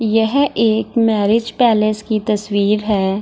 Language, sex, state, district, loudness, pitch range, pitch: Hindi, female, Bihar, Gaya, -16 LUFS, 210-225 Hz, 220 Hz